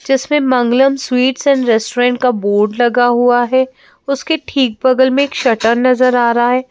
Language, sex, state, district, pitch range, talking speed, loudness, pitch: Hindi, female, Madhya Pradesh, Bhopal, 240-265 Hz, 160 wpm, -13 LUFS, 250 Hz